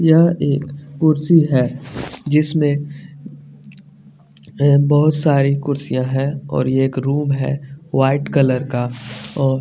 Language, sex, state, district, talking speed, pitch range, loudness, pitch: Hindi, male, Bihar, West Champaran, 125 wpm, 135-150 Hz, -17 LUFS, 140 Hz